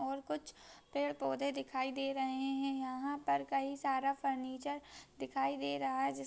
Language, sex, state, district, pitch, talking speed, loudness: Hindi, female, Maharashtra, Dhule, 255 Hz, 170 wpm, -38 LUFS